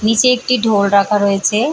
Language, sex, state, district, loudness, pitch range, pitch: Bengali, female, West Bengal, Paschim Medinipur, -14 LUFS, 200-250 Hz, 215 Hz